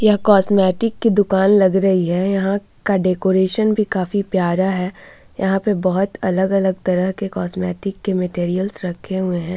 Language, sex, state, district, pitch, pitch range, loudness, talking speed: Hindi, female, Bihar, Vaishali, 190 Hz, 185-200 Hz, -18 LUFS, 165 wpm